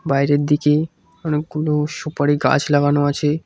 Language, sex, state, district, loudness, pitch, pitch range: Bengali, male, West Bengal, Cooch Behar, -18 LUFS, 150 Hz, 145-150 Hz